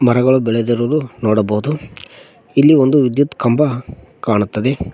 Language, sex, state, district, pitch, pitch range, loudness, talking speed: Kannada, male, Karnataka, Koppal, 130 Hz, 115-145 Hz, -15 LUFS, 95 wpm